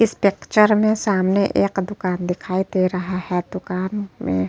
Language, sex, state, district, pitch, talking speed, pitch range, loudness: Hindi, female, Uttar Pradesh, Etah, 190 Hz, 175 wpm, 185-205 Hz, -20 LUFS